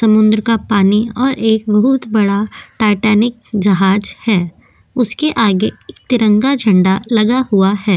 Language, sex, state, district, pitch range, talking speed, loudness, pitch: Hindi, female, Goa, North and South Goa, 200-230 Hz, 130 wpm, -13 LUFS, 215 Hz